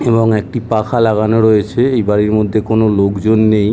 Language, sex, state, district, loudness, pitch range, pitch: Bengali, male, West Bengal, Jhargram, -13 LUFS, 105-115 Hz, 110 Hz